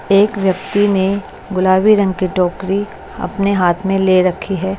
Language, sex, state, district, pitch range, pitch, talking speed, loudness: Hindi, female, Bihar, West Champaran, 185-200 Hz, 190 Hz, 165 wpm, -15 LUFS